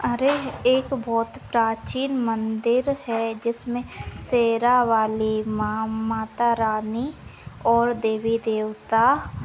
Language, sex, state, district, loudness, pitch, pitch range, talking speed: Hindi, female, Maharashtra, Sindhudurg, -23 LUFS, 230 Hz, 220-245 Hz, 80 wpm